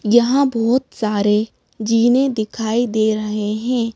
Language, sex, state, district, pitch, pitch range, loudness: Hindi, female, Madhya Pradesh, Bhopal, 225 Hz, 215-240 Hz, -18 LUFS